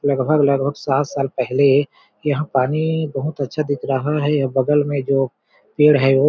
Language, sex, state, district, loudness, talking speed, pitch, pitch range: Hindi, male, Chhattisgarh, Balrampur, -18 LUFS, 160 wpm, 140 Hz, 135-150 Hz